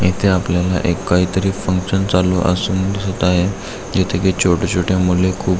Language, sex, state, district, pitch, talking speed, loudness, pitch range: Marathi, male, Maharashtra, Aurangabad, 90 Hz, 170 wpm, -17 LUFS, 90-95 Hz